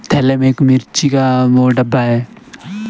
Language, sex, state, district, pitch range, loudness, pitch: Hindi, male, Himachal Pradesh, Shimla, 125-135 Hz, -12 LUFS, 130 Hz